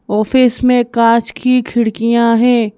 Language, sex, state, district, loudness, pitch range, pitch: Hindi, female, Madhya Pradesh, Bhopal, -12 LUFS, 230-250 Hz, 235 Hz